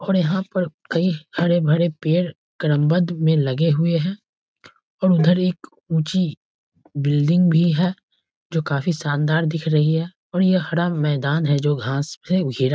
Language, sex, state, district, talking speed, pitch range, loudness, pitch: Hindi, male, Bihar, East Champaran, 160 wpm, 150-175 Hz, -20 LUFS, 165 Hz